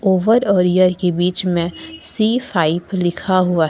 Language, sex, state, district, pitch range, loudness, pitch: Hindi, female, Jharkhand, Ranchi, 175-200 Hz, -17 LUFS, 185 Hz